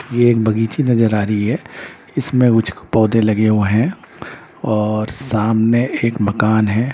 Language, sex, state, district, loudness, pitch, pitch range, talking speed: Hindi, male, Bihar, Patna, -16 LUFS, 110 Hz, 110-120 Hz, 155 wpm